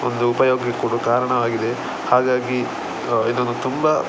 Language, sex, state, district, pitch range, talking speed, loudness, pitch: Kannada, male, Karnataka, Dakshina Kannada, 120-125 Hz, 105 wpm, -20 LUFS, 125 Hz